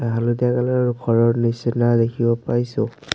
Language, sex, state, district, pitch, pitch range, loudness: Assamese, male, Assam, Sonitpur, 120 Hz, 115-125 Hz, -20 LUFS